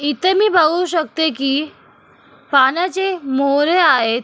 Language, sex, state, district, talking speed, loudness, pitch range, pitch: Marathi, female, Maharashtra, Solapur, 115 wpm, -16 LUFS, 275-360 Hz, 315 Hz